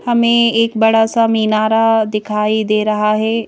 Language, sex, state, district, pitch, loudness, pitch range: Hindi, female, Madhya Pradesh, Bhopal, 220 Hz, -14 LUFS, 215-230 Hz